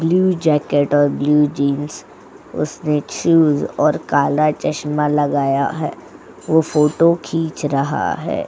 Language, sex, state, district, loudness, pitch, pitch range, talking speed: Hindi, female, Goa, North and South Goa, -17 LUFS, 150 Hz, 145-160 Hz, 120 wpm